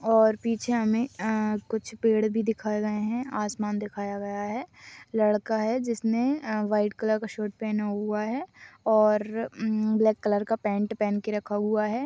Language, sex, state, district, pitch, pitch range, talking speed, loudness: Hindi, female, West Bengal, Dakshin Dinajpur, 215 Hz, 210-225 Hz, 160 wpm, -27 LUFS